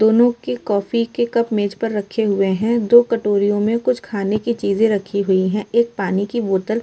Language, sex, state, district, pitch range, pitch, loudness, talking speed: Hindi, female, Uttar Pradesh, Muzaffarnagar, 200-235 Hz, 215 Hz, -18 LUFS, 200 wpm